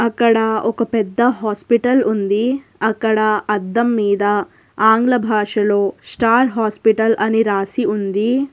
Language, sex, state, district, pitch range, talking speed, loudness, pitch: Telugu, female, Telangana, Hyderabad, 210-235 Hz, 105 wpm, -16 LUFS, 220 Hz